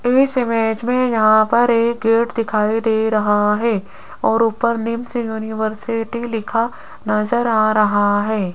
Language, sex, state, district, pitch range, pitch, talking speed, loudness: Hindi, female, Rajasthan, Jaipur, 215-235 Hz, 225 Hz, 140 wpm, -17 LUFS